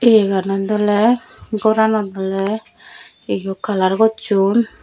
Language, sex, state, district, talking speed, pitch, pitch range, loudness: Chakma, female, Tripura, Dhalai, 85 wpm, 210 Hz, 195-220 Hz, -17 LUFS